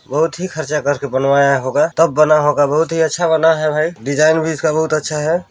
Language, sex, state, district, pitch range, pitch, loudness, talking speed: Hindi, male, Chhattisgarh, Balrampur, 145-160 Hz, 155 Hz, -15 LUFS, 230 wpm